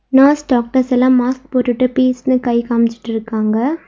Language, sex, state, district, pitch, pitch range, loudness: Tamil, female, Tamil Nadu, Nilgiris, 250 Hz, 235-260 Hz, -15 LUFS